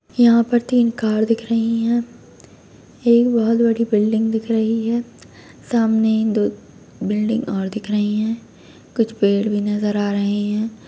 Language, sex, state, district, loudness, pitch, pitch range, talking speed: Kumaoni, female, Uttarakhand, Tehri Garhwal, -19 LUFS, 225 Hz, 210-230 Hz, 155 wpm